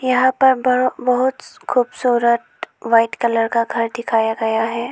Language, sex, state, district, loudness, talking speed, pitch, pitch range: Hindi, female, Arunachal Pradesh, Lower Dibang Valley, -17 LUFS, 135 wpm, 235 Hz, 230-255 Hz